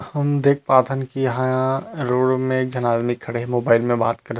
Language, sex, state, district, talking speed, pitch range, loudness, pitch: Chhattisgarhi, male, Chhattisgarh, Rajnandgaon, 230 wpm, 120-135 Hz, -20 LUFS, 130 Hz